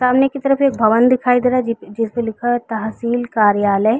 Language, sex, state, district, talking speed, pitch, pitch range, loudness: Hindi, female, Chhattisgarh, Raigarh, 225 wpm, 240 Hz, 220-250 Hz, -16 LUFS